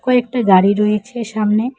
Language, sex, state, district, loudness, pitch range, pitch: Bengali, female, West Bengal, Cooch Behar, -15 LUFS, 210-245 Hz, 220 Hz